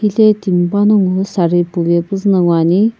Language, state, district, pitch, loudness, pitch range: Sumi, Nagaland, Kohima, 190 Hz, -13 LUFS, 175-210 Hz